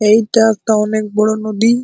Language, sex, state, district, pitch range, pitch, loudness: Bengali, male, West Bengal, Malda, 215-225 Hz, 215 Hz, -14 LUFS